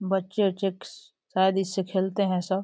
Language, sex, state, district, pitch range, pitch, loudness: Hindi, female, Uttar Pradesh, Deoria, 190-195 Hz, 190 Hz, -26 LUFS